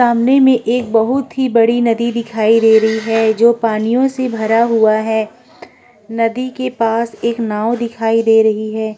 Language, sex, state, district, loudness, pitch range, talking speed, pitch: Hindi, female, Uttar Pradesh, Budaun, -14 LUFS, 220-235 Hz, 175 wpm, 230 Hz